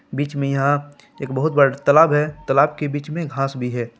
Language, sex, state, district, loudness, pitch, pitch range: Hindi, male, Jharkhand, Palamu, -19 LUFS, 145 Hz, 135-150 Hz